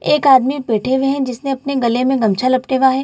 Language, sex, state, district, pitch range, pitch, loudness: Hindi, female, Bihar, Gaya, 250-275 Hz, 265 Hz, -15 LUFS